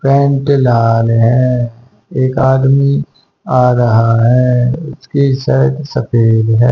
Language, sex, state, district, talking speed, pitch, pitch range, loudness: Hindi, male, Haryana, Charkhi Dadri, 105 wpm, 125 Hz, 115-135 Hz, -12 LUFS